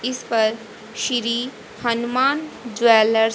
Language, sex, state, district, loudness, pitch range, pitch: Hindi, female, Haryana, Rohtak, -20 LUFS, 225-250 Hz, 235 Hz